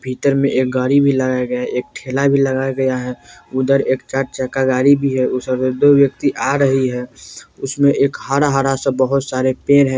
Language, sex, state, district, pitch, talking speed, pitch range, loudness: Bajjika, male, Bihar, Vaishali, 135 Hz, 210 wpm, 130-140 Hz, -16 LUFS